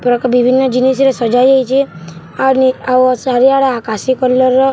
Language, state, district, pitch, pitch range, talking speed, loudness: Sambalpuri, Odisha, Sambalpur, 255 Hz, 245-265 Hz, 175 wpm, -12 LUFS